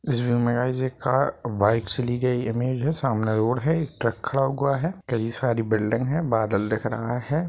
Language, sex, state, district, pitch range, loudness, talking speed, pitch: Hindi, male, Bihar, Gopalganj, 115-135 Hz, -24 LUFS, 225 wpm, 120 Hz